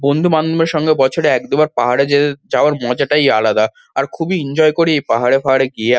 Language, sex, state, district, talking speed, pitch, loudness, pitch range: Bengali, male, West Bengal, Kolkata, 190 wpm, 140 Hz, -14 LUFS, 125-155 Hz